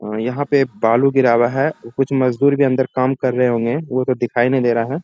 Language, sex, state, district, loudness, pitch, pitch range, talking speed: Hindi, male, Bihar, Bhagalpur, -17 LUFS, 130 Hz, 120-135 Hz, 260 wpm